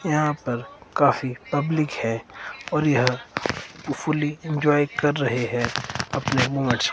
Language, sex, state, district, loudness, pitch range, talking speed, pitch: Hindi, male, Himachal Pradesh, Shimla, -24 LUFS, 120-150 Hz, 130 wpm, 140 Hz